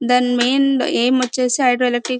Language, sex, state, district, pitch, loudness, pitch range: Telugu, female, Karnataka, Bellary, 250 Hz, -16 LUFS, 245-260 Hz